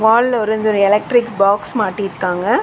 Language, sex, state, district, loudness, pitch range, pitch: Tamil, female, Tamil Nadu, Chennai, -16 LUFS, 200-230 Hz, 210 Hz